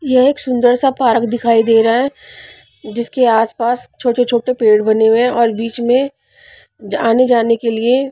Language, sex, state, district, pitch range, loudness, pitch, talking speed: Hindi, female, Punjab, Pathankot, 230-255 Hz, -14 LUFS, 240 Hz, 170 wpm